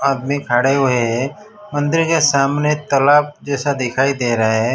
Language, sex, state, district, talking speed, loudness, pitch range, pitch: Hindi, male, Gujarat, Valsad, 165 wpm, -16 LUFS, 130-150 Hz, 140 Hz